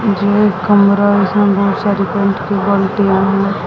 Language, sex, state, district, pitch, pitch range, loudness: Hindi, female, Haryana, Jhajjar, 200 Hz, 195-205 Hz, -13 LUFS